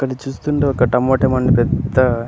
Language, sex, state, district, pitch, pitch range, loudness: Telugu, male, Andhra Pradesh, Anantapur, 130 Hz, 125-135 Hz, -16 LUFS